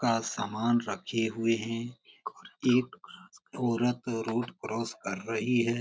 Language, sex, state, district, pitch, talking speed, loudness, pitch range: Hindi, male, Bihar, Jamui, 115 Hz, 125 wpm, -31 LUFS, 115-120 Hz